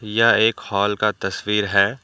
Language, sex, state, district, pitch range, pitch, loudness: Hindi, male, Jharkhand, Deoghar, 100-110 Hz, 105 Hz, -19 LUFS